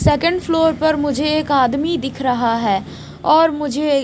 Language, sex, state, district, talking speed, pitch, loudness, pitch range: Hindi, female, Punjab, Pathankot, 165 wpm, 295 Hz, -17 LUFS, 270-320 Hz